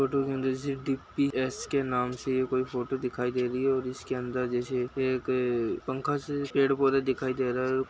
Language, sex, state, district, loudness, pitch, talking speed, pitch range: Hindi, male, Bihar, Bhagalpur, -29 LUFS, 130 Hz, 195 wpm, 125-135 Hz